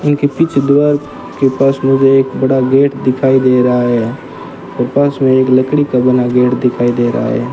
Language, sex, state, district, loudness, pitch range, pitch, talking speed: Hindi, male, Rajasthan, Bikaner, -12 LUFS, 125-140 Hz, 130 Hz, 200 wpm